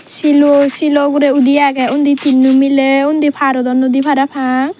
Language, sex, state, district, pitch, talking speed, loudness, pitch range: Chakma, female, Tripura, Dhalai, 280 Hz, 165 wpm, -11 LUFS, 265-290 Hz